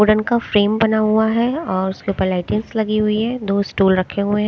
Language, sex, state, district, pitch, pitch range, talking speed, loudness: Hindi, female, Haryana, Charkhi Dadri, 210 Hz, 200-220 Hz, 225 wpm, -18 LUFS